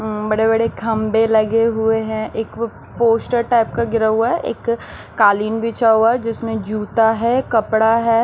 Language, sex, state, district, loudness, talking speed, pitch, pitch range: Hindi, female, Haryana, Rohtak, -17 LUFS, 165 wpm, 225 Hz, 220-230 Hz